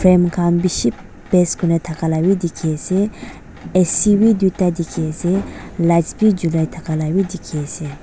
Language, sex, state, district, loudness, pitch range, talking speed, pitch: Nagamese, female, Nagaland, Dimapur, -17 LUFS, 160-185 Hz, 180 wpm, 175 Hz